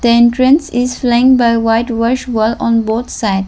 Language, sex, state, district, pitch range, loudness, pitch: English, female, Arunachal Pradesh, Lower Dibang Valley, 225-250 Hz, -12 LUFS, 235 Hz